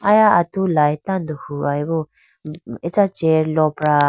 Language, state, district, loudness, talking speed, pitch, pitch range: Idu Mishmi, Arunachal Pradesh, Lower Dibang Valley, -18 LUFS, 130 wpm, 155 Hz, 150-185 Hz